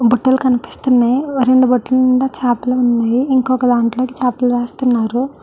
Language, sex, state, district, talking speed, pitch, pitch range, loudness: Telugu, female, Andhra Pradesh, Chittoor, 120 wpm, 250 Hz, 245-255 Hz, -15 LUFS